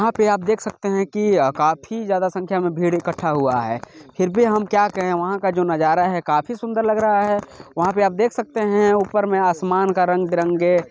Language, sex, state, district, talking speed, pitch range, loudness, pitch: Hindi, male, Chhattisgarh, Bilaspur, 230 wpm, 175-210 Hz, -19 LUFS, 190 Hz